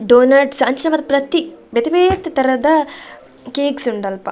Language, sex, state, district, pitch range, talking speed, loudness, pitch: Tulu, female, Karnataka, Dakshina Kannada, 250-315 Hz, 140 wpm, -15 LUFS, 275 Hz